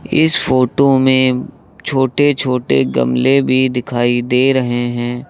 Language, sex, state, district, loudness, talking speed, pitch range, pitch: Hindi, male, Uttar Pradesh, Lucknow, -14 LUFS, 125 wpm, 120-135 Hz, 130 Hz